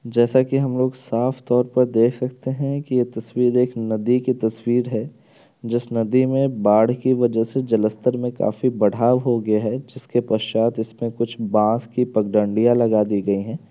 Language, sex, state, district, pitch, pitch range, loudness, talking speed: Hindi, male, Bihar, Darbhanga, 120 Hz, 110-125 Hz, -20 LUFS, 190 wpm